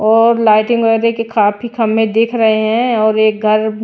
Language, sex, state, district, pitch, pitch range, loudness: Hindi, female, Bihar, Patna, 220 Hz, 215-230 Hz, -13 LUFS